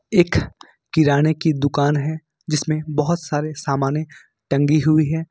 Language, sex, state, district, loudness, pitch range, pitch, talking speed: Hindi, male, Jharkhand, Ranchi, -20 LUFS, 145-160 Hz, 155 Hz, 135 wpm